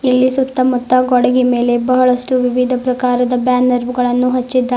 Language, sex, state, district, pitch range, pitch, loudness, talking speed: Kannada, female, Karnataka, Bidar, 250-255 Hz, 250 Hz, -14 LUFS, 125 wpm